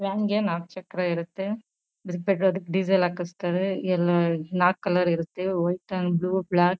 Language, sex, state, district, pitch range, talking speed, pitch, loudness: Kannada, female, Karnataka, Chamarajanagar, 175-190 Hz, 140 wpm, 180 Hz, -25 LUFS